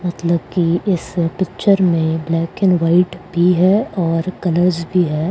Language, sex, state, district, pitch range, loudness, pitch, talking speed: Hindi, female, Maharashtra, Pune, 165-185 Hz, -16 LUFS, 175 Hz, 160 wpm